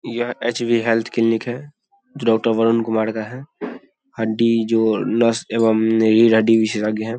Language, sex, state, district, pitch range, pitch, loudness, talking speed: Hindi, male, Bihar, Saharsa, 110-120 Hz, 115 Hz, -18 LUFS, 150 wpm